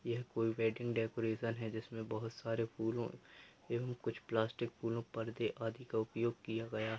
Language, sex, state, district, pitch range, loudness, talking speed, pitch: Hindi, male, Bihar, Purnia, 110-120 Hz, -40 LUFS, 165 wpm, 115 Hz